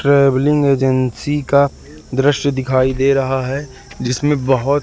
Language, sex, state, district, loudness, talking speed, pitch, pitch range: Hindi, male, Madhya Pradesh, Katni, -16 LUFS, 125 wpm, 135 Hz, 130-140 Hz